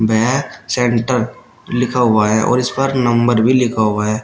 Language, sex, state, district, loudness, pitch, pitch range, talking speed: Hindi, male, Uttar Pradesh, Shamli, -15 LUFS, 120 Hz, 110-125 Hz, 185 wpm